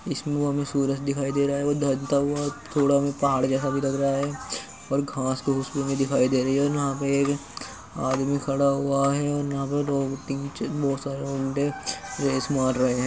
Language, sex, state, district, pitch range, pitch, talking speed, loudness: Hindi, male, Uttar Pradesh, Muzaffarnagar, 135-140 Hz, 140 Hz, 140 wpm, -25 LUFS